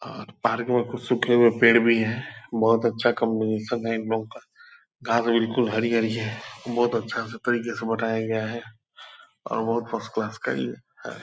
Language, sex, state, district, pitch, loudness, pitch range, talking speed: Hindi, male, Bihar, Purnia, 115 Hz, -24 LUFS, 110-120 Hz, 190 wpm